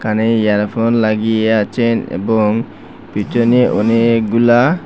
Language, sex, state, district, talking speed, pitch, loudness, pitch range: Bengali, male, Assam, Hailakandi, 85 wpm, 115 Hz, -14 LUFS, 110-115 Hz